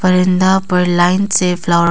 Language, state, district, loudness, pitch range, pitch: Hindi, Arunachal Pradesh, Papum Pare, -13 LUFS, 175-185 Hz, 180 Hz